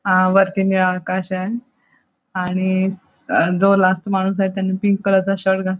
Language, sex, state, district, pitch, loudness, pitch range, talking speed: Marathi, female, Goa, North and South Goa, 190 Hz, -18 LUFS, 185-195 Hz, 165 wpm